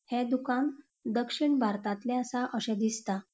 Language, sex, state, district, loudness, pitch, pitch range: Konkani, female, Goa, North and South Goa, -31 LUFS, 245 Hz, 220-255 Hz